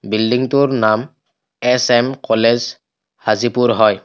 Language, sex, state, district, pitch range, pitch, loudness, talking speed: Assamese, male, Assam, Kamrup Metropolitan, 110-125 Hz, 120 Hz, -15 LUFS, 90 wpm